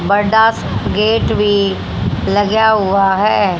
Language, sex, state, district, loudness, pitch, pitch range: Hindi, female, Haryana, Jhajjar, -14 LUFS, 205 Hz, 195-220 Hz